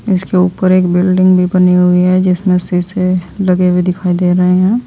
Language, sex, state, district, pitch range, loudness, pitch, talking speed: Hindi, female, Uttar Pradesh, Saharanpur, 180-185 Hz, -11 LUFS, 180 Hz, 195 wpm